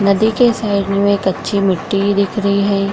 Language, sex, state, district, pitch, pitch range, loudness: Hindi, female, Bihar, Kishanganj, 200 Hz, 195-205 Hz, -15 LUFS